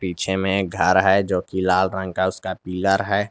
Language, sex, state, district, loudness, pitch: Hindi, male, Jharkhand, Garhwa, -21 LUFS, 95 Hz